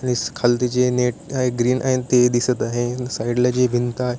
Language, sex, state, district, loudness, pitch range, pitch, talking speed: Marathi, male, Maharashtra, Chandrapur, -20 LUFS, 120-125 Hz, 125 Hz, 200 wpm